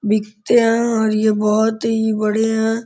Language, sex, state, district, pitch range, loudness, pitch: Hindi, male, Uttar Pradesh, Gorakhpur, 215-225 Hz, -17 LUFS, 220 Hz